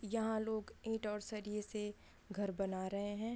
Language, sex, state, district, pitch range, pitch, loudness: Hindi, female, Uttar Pradesh, Budaun, 205-220 Hz, 210 Hz, -42 LUFS